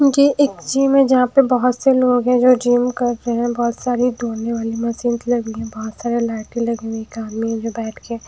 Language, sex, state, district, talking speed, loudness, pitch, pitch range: Hindi, female, Haryana, Jhajjar, 230 wpm, -18 LUFS, 240 Hz, 225-250 Hz